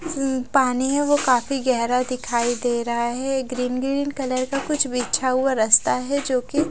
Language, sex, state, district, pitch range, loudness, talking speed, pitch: Hindi, female, Odisha, Khordha, 250-275 Hz, -21 LUFS, 170 wpm, 255 Hz